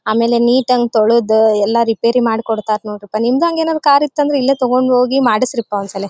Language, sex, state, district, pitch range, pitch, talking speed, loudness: Kannada, female, Karnataka, Dharwad, 220-260 Hz, 235 Hz, 155 wpm, -14 LUFS